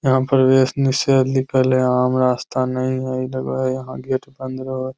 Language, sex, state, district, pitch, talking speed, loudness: Magahi, male, Bihar, Lakhisarai, 130 Hz, 195 wpm, -19 LUFS